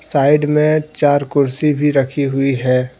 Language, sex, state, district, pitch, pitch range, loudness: Hindi, male, Jharkhand, Deoghar, 145 Hz, 135-150 Hz, -15 LUFS